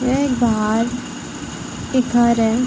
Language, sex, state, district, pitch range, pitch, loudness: Hindi, female, Uttar Pradesh, Varanasi, 230-250 Hz, 245 Hz, -19 LUFS